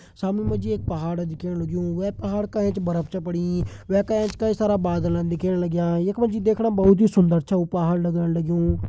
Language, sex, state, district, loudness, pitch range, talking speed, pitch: Hindi, male, Uttarakhand, Uttarkashi, -23 LUFS, 170-200 Hz, 215 wpm, 175 Hz